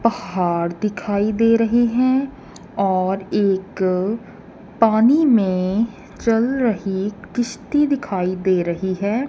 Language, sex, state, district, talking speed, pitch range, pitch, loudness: Hindi, female, Punjab, Kapurthala, 105 wpm, 190-230 Hz, 210 Hz, -19 LUFS